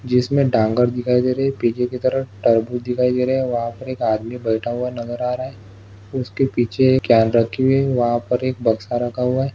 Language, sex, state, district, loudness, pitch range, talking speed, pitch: Hindi, male, Maharashtra, Solapur, -19 LUFS, 115-130 Hz, 240 wpm, 125 Hz